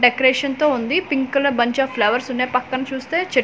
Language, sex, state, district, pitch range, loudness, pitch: Telugu, female, Andhra Pradesh, Manyam, 250-280 Hz, -19 LUFS, 260 Hz